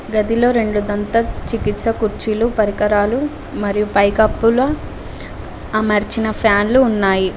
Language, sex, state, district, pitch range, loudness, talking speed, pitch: Telugu, female, Telangana, Mahabubabad, 205-230 Hz, -17 LUFS, 90 wpm, 215 Hz